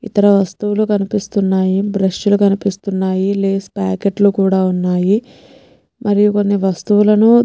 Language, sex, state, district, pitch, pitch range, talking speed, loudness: Telugu, female, Telangana, Nalgonda, 200 Hz, 190-205 Hz, 120 wpm, -15 LUFS